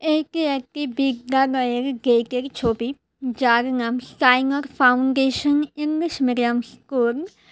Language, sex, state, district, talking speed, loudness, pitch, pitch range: Bengali, female, Tripura, West Tripura, 110 wpm, -21 LUFS, 265 Hz, 245-280 Hz